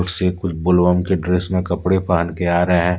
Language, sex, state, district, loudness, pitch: Hindi, male, Jharkhand, Deoghar, -18 LUFS, 90 Hz